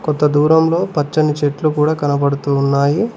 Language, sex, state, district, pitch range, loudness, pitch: Telugu, male, Telangana, Mahabubabad, 145-155 Hz, -15 LUFS, 150 Hz